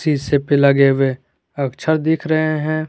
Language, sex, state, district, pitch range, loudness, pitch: Hindi, male, Jharkhand, Garhwa, 140-155 Hz, -17 LUFS, 145 Hz